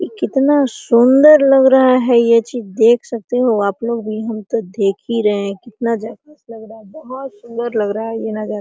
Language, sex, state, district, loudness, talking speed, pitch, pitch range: Hindi, female, Jharkhand, Sahebganj, -15 LUFS, 215 wpm, 235 Hz, 215-255 Hz